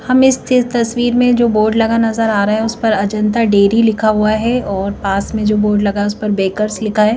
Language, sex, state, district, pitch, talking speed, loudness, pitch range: Hindi, female, Madhya Pradesh, Bhopal, 215 Hz, 250 wpm, -14 LUFS, 210-230 Hz